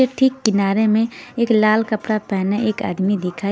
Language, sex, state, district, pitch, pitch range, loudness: Hindi, female, Haryana, Rohtak, 215 Hz, 200-225 Hz, -18 LUFS